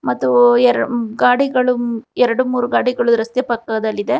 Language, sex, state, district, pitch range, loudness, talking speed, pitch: Kannada, female, Karnataka, Bangalore, 225-250 Hz, -16 LUFS, 130 wpm, 240 Hz